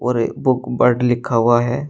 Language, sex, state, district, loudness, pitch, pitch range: Hindi, male, Uttar Pradesh, Shamli, -17 LUFS, 125 Hz, 120-125 Hz